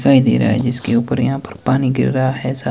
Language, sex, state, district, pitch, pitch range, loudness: Hindi, male, Himachal Pradesh, Shimla, 130 Hz, 120-130 Hz, -16 LUFS